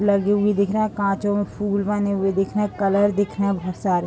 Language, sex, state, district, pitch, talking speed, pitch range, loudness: Hindi, female, Bihar, Bhagalpur, 200 Hz, 220 wpm, 195-205 Hz, -21 LUFS